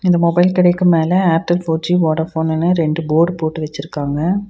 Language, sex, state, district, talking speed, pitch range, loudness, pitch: Tamil, female, Tamil Nadu, Nilgiris, 145 wpm, 160-175 Hz, -16 LUFS, 165 Hz